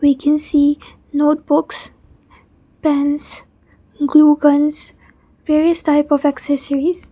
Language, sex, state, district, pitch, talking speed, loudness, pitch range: English, female, Mizoram, Aizawl, 295 Hz, 95 wpm, -15 LUFS, 290-300 Hz